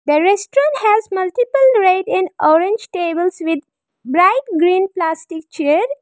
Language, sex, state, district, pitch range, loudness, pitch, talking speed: English, female, Arunachal Pradesh, Lower Dibang Valley, 320-385 Hz, -15 LUFS, 355 Hz, 130 wpm